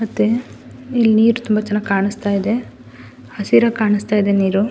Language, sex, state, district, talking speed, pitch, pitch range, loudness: Kannada, female, Karnataka, Dakshina Kannada, 155 wpm, 210 Hz, 195-225 Hz, -17 LUFS